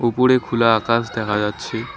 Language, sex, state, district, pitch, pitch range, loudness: Bengali, male, West Bengal, Alipurduar, 115 Hz, 110-120 Hz, -18 LUFS